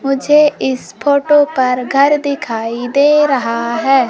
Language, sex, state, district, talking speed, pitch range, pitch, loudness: Hindi, female, Madhya Pradesh, Umaria, 130 wpm, 245-290 Hz, 275 Hz, -13 LUFS